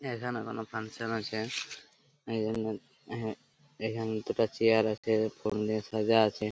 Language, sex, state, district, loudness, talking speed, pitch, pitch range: Bengali, male, West Bengal, Paschim Medinipur, -32 LUFS, 130 wpm, 110 Hz, 110-115 Hz